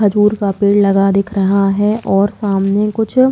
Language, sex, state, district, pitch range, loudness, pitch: Hindi, female, Uttar Pradesh, Jalaun, 195-210 Hz, -14 LUFS, 205 Hz